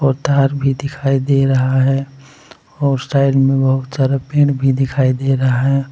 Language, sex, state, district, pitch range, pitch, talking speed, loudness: Hindi, male, Jharkhand, Palamu, 135-140 Hz, 135 Hz, 170 wpm, -15 LUFS